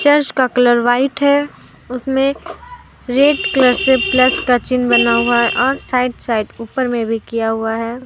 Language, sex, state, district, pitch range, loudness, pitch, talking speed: Hindi, female, Jharkhand, Deoghar, 235-265 Hz, -15 LUFS, 250 Hz, 180 wpm